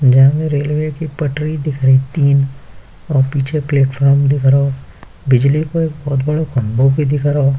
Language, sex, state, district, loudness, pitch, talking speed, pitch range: Hindi, male, Uttar Pradesh, Jyotiba Phule Nagar, -15 LUFS, 140 Hz, 175 wpm, 135-150 Hz